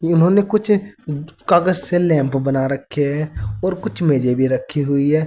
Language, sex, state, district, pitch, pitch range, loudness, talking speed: Hindi, male, Uttar Pradesh, Saharanpur, 155 Hz, 135-180 Hz, -18 LUFS, 170 wpm